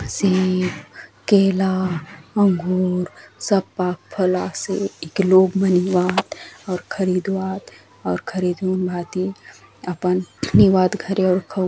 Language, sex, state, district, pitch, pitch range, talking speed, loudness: Chhattisgarhi, female, Chhattisgarh, Bastar, 185 Hz, 180-190 Hz, 115 wpm, -20 LUFS